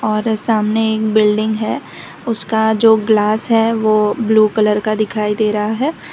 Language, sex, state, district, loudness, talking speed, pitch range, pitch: Hindi, female, Gujarat, Valsad, -15 LUFS, 165 wpm, 215-225 Hz, 215 Hz